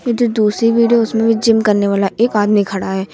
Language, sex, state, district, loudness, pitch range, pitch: Hindi, male, Uttar Pradesh, Lucknow, -14 LUFS, 200-230 Hz, 220 Hz